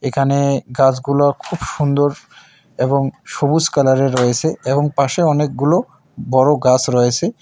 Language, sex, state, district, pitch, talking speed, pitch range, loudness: Bengali, male, West Bengal, Alipurduar, 140 Hz, 115 wpm, 130-150 Hz, -16 LUFS